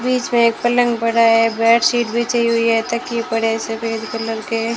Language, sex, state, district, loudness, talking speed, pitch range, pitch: Hindi, female, Rajasthan, Jaisalmer, -17 LUFS, 190 wpm, 225-235 Hz, 230 Hz